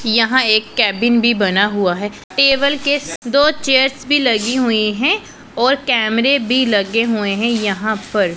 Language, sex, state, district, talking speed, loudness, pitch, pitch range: Hindi, female, Punjab, Pathankot, 170 wpm, -15 LUFS, 235 Hz, 215-265 Hz